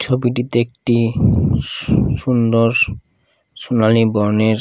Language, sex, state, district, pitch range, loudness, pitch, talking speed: Bengali, male, Odisha, Khordha, 110-120 Hz, -16 LUFS, 115 Hz, 80 wpm